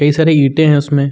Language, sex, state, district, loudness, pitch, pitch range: Hindi, male, Uttar Pradesh, Muzaffarnagar, -11 LUFS, 145 Hz, 140-155 Hz